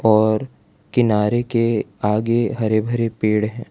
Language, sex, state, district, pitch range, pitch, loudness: Hindi, male, Gujarat, Valsad, 110-120 Hz, 110 Hz, -19 LUFS